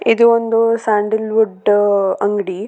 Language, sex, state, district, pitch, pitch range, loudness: Kannada, female, Karnataka, Raichur, 210 Hz, 205-230 Hz, -15 LUFS